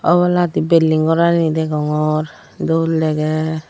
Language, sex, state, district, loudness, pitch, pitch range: Chakma, female, Tripura, Dhalai, -16 LUFS, 160 Hz, 155-165 Hz